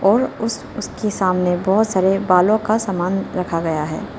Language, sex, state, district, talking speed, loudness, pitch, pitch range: Hindi, female, Arunachal Pradesh, Lower Dibang Valley, 185 wpm, -19 LUFS, 190 Hz, 180-215 Hz